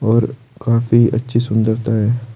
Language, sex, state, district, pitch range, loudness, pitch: Hindi, male, Uttar Pradesh, Saharanpur, 110-120 Hz, -16 LUFS, 115 Hz